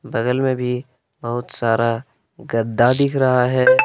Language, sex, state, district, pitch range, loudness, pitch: Hindi, male, Jharkhand, Palamu, 115-130 Hz, -19 LUFS, 125 Hz